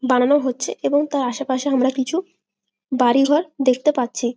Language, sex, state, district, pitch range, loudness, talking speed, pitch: Bengali, female, West Bengal, Jalpaiguri, 255-290 Hz, -19 LUFS, 135 wpm, 265 Hz